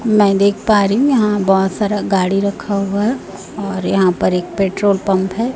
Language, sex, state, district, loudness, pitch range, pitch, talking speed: Hindi, female, Chhattisgarh, Raipur, -15 LUFS, 195-210 Hz, 200 Hz, 205 wpm